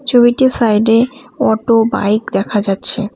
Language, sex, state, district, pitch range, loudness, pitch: Bengali, female, West Bengal, Cooch Behar, 215-250 Hz, -13 LUFS, 230 Hz